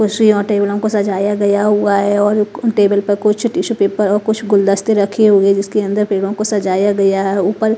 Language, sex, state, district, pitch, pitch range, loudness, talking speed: Hindi, female, Punjab, Kapurthala, 205 Hz, 200-210 Hz, -14 LUFS, 225 wpm